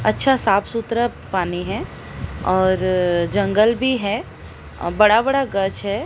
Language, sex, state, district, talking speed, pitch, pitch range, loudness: Hindi, female, Odisha, Sambalpur, 140 wpm, 200 Hz, 185-230 Hz, -19 LUFS